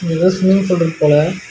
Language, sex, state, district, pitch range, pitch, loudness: Tamil, male, Karnataka, Bangalore, 165-185 Hz, 175 Hz, -14 LUFS